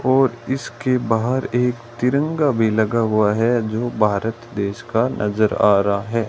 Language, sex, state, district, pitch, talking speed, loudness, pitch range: Hindi, male, Rajasthan, Bikaner, 115 Hz, 160 wpm, -19 LUFS, 110-125 Hz